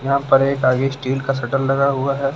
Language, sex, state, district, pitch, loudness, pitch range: Hindi, male, Uttar Pradesh, Lucknow, 135 Hz, -18 LUFS, 135-140 Hz